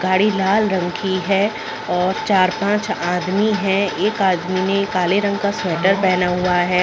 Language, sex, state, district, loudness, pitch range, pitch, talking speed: Hindi, female, Chhattisgarh, Raigarh, -18 LUFS, 180-205 Hz, 190 Hz, 185 wpm